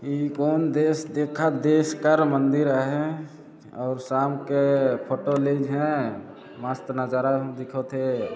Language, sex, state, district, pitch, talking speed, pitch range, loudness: Chhattisgarhi, male, Chhattisgarh, Jashpur, 140 Hz, 130 wpm, 130-150 Hz, -24 LUFS